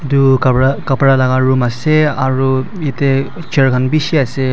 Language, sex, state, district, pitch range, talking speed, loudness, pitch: Nagamese, male, Nagaland, Dimapur, 130-140 Hz, 160 wpm, -13 LUFS, 135 Hz